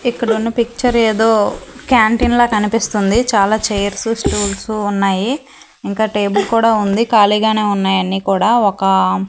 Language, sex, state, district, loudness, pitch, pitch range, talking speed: Telugu, female, Andhra Pradesh, Manyam, -15 LUFS, 215 Hz, 200-230 Hz, 115 wpm